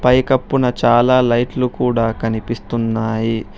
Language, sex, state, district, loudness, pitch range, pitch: Telugu, male, Telangana, Hyderabad, -16 LUFS, 115-125 Hz, 120 Hz